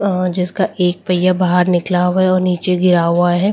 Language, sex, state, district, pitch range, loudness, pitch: Hindi, female, Delhi, New Delhi, 180-185 Hz, -15 LUFS, 180 Hz